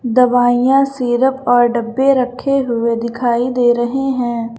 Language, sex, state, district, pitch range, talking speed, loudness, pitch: Hindi, female, Uttar Pradesh, Lucknow, 240-260 Hz, 130 wpm, -15 LUFS, 245 Hz